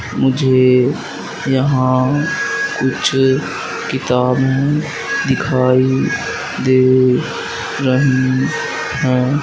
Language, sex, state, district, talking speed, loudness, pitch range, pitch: Hindi, male, Madhya Pradesh, Katni, 50 wpm, -15 LUFS, 130-145 Hz, 130 Hz